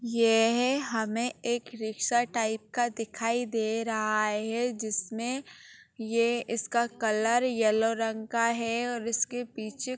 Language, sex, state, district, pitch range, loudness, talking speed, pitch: Hindi, female, Uttar Pradesh, Gorakhpur, 220-240 Hz, -29 LUFS, 130 wpm, 230 Hz